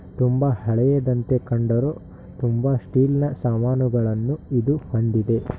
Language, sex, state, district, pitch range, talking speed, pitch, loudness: Kannada, male, Karnataka, Shimoga, 115-135 Hz, 85 wpm, 125 Hz, -22 LUFS